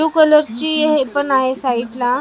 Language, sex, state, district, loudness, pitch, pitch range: Marathi, female, Maharashtra, Mumbai Suburban, -15 LUFS, 275 Hz, 255-305 Hz